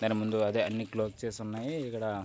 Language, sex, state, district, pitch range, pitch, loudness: Telugu, male, Andhra Pradesh, Guntur, 110-115 Hz, 110 Hz, -33 LUFS